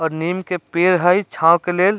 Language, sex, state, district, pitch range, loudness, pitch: Bajjika, male, Bihar, Vaishali, 170-185 Hz, -17 LUFS, 180 Hz